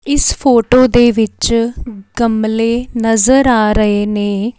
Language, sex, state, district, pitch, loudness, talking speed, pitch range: Punjabi, female, Chandigarh, Chandigarh, 230 Hz, -12 LUFS, 115 wpm, 215-245 Hz